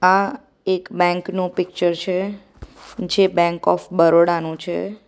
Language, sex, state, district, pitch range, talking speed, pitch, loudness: Gujarati, female, Gujarat, Valsad, 175-190 Hz, 140 wpm, 180 Hz, -19 LUFS